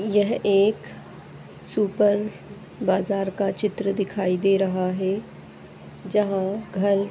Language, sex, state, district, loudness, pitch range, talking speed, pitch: Hindi, female, Goa, North and South Goa, -23 LUFS, 190-205 Hz, 100 wpm, 195 Hz